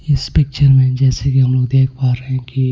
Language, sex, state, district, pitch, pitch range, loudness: Hindi, male, Punjab, Pathankot, 130 Hz, 130-135 Hz, -14 LUFS